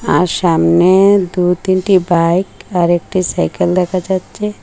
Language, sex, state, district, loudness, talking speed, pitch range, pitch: Bengali, female, Assam, Hailakandi, -13 LUFS, 115 wpm, 175-190 Hz, 180 Hz